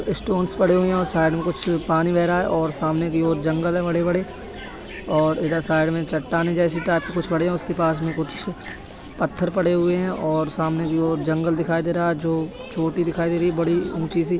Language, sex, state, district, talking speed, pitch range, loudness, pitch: Hindi, male, Uttar Pradesh, Etah, 230 wpm, 160-175 Hz, -22 LUFS, 170 Hz